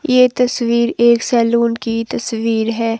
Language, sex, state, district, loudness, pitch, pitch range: Hindi, female, Himachal Pradesh, Shimla, -15 LUFS, 235 Hz, 230-240 Hz